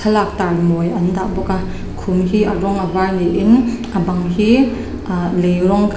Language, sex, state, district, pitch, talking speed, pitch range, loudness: Mizo, female, Mizoram, Aizawl, 190 Hz, 210 wpm, 180-205 Hz, -16 LUFS